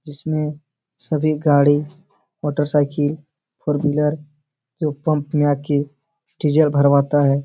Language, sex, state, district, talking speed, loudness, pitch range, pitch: Hindi, male, Bihar, Supaul, 115 wpm, -19 LUFS, 145-155 Hz, 150 Hz